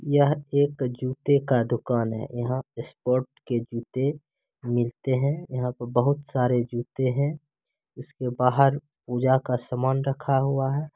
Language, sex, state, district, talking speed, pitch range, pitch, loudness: Angika, male, Bihar, Begusarai, 135 wpm, 125-140 Hz, 130 Hz, -25 LUFS